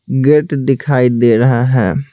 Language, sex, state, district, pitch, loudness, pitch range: Hindi, male, Bihar, Patna, 130 Hz, -12 LUFS, 125-145 Hz